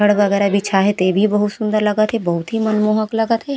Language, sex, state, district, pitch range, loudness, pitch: Chhattisgarhi, female, Chhattisgarh, Raigarh, 200-215 Hz, -17 LUFS, 210 Hz